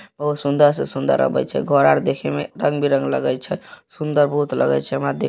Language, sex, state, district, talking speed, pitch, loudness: Maithili, male, Bihar, Samastipur, 240 wpm, 145 Hz, -19 LUFS